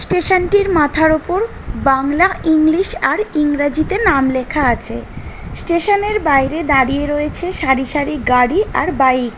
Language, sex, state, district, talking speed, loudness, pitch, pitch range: Bengali, female, West Bengal, North 24 Parganas, 135 wpm, -15 LUFS, 310 Hz, 275-365 Hz